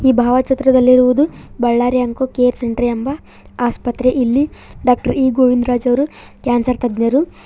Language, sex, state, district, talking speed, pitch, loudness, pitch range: Kannada, female, Karnataka, Koppal, 120 wpm, 250 Hz, -15 LUFS, 245-260 Hz